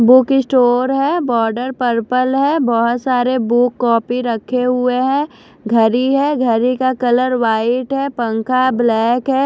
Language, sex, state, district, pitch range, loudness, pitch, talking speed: Hindi, female, Odisha, Khordha, 235-260 Hz, -15 LUFS, 250 Hz, 145 wpm